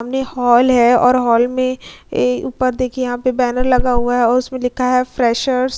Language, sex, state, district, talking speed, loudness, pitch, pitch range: Hindi, female, Bihar, Vaishali, 220 wpm, -15 LUFS, 250 Hz, 245-255 Hz